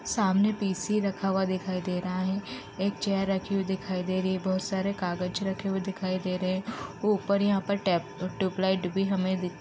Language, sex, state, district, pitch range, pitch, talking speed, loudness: Hindi, female, Uttar Pradesh, Deoria, 185-195 Hz, 190 Hz, 200 wpm, -29 LUFS